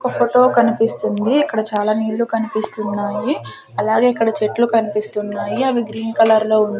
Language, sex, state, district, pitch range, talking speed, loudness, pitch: Telugu, female, Andhra Pradesh, Sri Satya Sai, 215-235 Hz, 140 wpm, -17 LUFS, 220 Hz